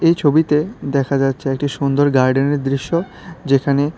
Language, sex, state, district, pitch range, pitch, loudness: Bengali, male, Tripura, West Tripura, 135-160 Hz, 140 Hz, -17 LUFS